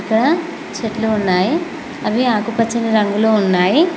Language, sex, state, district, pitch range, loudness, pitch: Telugu, female, Telangana, Mahabubabad, 215-305 Hz, -17 LUFS, 225 Hz